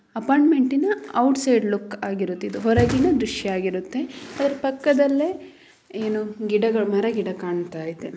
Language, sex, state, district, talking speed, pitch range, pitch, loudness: Kannada, female, Karnataka, Mysore, 125 wpm, 200-280 Hz, 225 Hz, -22 LUFS